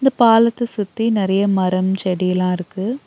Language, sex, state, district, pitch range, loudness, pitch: Tamil, female, Tamil Nadu, Nilgiris, 185-230 Hz, -17 LUFS, 200 Hz